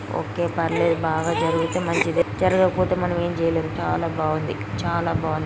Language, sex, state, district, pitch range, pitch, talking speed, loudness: Telugu, male, Andhra Pradesh, Guntur, 165-180 Hz, 165 Hz, 110 wpm, -22 LUFS